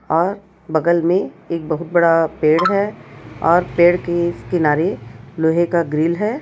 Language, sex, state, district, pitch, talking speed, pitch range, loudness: Hindi, female, Chhattisgarh, Raipur, 170 Hz, 160 wpm, 160-175 Hz, -17 LUFS